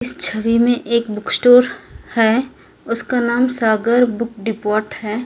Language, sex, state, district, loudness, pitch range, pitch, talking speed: Hindi, female, Delhi, New Delhi, -17 LUFS, 220-245 Hz, 235 Hz, 150 wpm